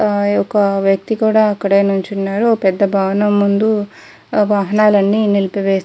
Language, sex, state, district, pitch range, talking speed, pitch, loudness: Telugu, female, Andhra Pradesh, Guntur, 195-210 Hz, 155 wpm, 200 Hz, -14 LUFS